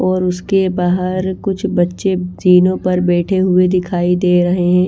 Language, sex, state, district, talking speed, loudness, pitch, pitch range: Hindi, female, Odisha, Malkangiri, 160 wpm, -15 LUFS, 180 Hz, 180-185 Hz